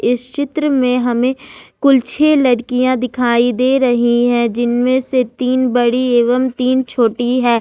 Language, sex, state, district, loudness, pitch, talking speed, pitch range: Hindi, female, Jharkhand, Ranchi, -14 LUFS, 250 Hz, 150 wpm, 240-260 Hz